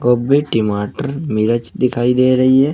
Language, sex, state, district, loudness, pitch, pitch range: Hindi, male, Uttar Pradesh, Saharanpur, -16 LUFS, 125 Hz, 115-135 Hz